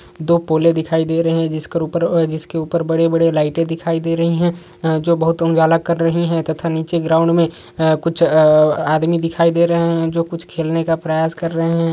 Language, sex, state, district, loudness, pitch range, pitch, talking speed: Hindi, male, Andhra Pradesh, Anantapur, -16 LUFS, 160-170 Hz, 165 Hz, 190 wpm